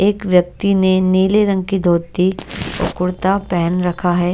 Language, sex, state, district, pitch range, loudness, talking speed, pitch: Hindi, female, Odisha, Nuapada, 180-195 Hz, -16 LUFS, 165 wpm, 185 Hz